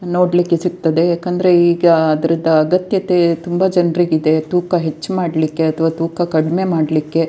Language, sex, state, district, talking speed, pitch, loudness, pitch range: Kannada, female, Karnataka, Dakshina Kannada, 140 wpm, 170 Hz, -15 LUFS, 160-180 Hz